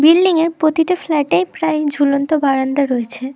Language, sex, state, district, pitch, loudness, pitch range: Bengali, female, West Bengal, Dakshin Dinajpur, 295 Hz, -16 LUFS, 270-320 Hz